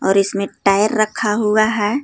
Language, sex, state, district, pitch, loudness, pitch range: Hindi, female, Jharkhand, Garhwa, 210 Hz, -17 LUFS, 200-215 Hz